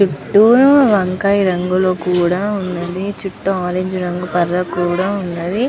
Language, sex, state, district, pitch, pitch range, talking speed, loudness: Telugu, female, Andhra Pradesh, Chittoor, 185 Hz, 180-200 Hz, 115 wpm, -15 LUFS